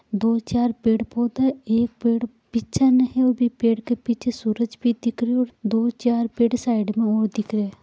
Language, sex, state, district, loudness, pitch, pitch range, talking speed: Marwari, female, Rajasthan, Nagaur, -22 LUFS, 235 Hz, 225-245 Hz, 200 wpm